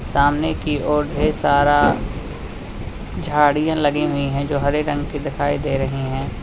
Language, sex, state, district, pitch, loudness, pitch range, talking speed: Hindi, male, Uttar Pradesh, Lalitpur, 145 Hz, -19 LUFS, 135-145 Hz, 160 wpm